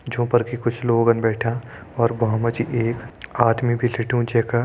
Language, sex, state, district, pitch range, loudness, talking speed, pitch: Hindi, male, Uttarakhand, Tehri Garhwal, 115-120 Hz, -21 LUFS, 205 wpm, 120 Hz